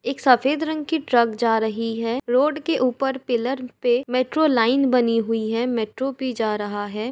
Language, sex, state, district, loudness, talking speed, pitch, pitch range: Hindi, female, Uttar Pradesh, Jalaun, -21 LUFS, 200 wpm, 250 Hz, 230-265 Hz